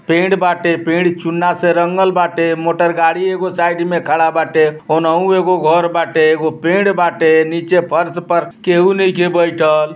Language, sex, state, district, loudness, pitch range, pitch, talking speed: Bhojpuri, male, Uttar Pradesh, Ghazipur, -14 LUFS, 165-175 Hz, 170 Hz, 155 wpm